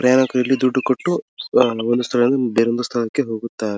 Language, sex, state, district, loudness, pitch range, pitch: Kannada, male, Karnataka, Dharwad, -19 LUFS, 115-130 Hz, 125 Hz